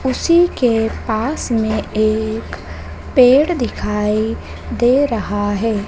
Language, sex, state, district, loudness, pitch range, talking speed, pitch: Hindi, female, Madhya Pradesh, Dhar, -16 LUFS, 215-260 Hz, 100 wpm, 225 Hz